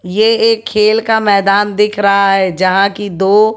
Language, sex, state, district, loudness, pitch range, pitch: Hindi, female, Haryana, Jhajjar, -11 LUFS, 195-220 Hz, 205 Hz